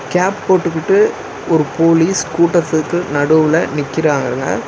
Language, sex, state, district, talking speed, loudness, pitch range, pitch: Tamil, male, Tamil Nadu, Chennai, 90 wpm, -14 LUFS, 155-180 Hz, 165 Hz